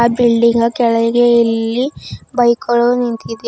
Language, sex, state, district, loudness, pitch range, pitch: Kannada, female, Karnataka, Bidar, -14 LUFS, 230-240 Hz, 235 Hz